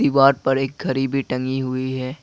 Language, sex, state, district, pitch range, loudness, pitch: Hindi, male, Assam, Kamrup Metropolitan, 130-135 Hz, -21 LUFS, 135 Hz